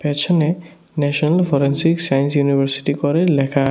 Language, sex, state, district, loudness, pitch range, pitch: Bengali, male, Tripura, West Tripura, -17 LUFS, 140-165 Hz, 145 Hz